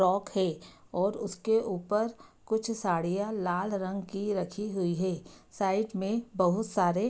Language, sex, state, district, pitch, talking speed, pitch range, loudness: Hindi, female, Bihar, Sitamarhi, 195 Hz, 150 wpm, 185-215 Hz, -31 LUFS